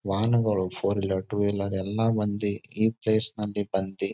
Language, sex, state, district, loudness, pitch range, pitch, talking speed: Kannada, male, Karnataka, Bijapur, -27 LUFS, 100-110 Hz, 105 Hz, 160 wpm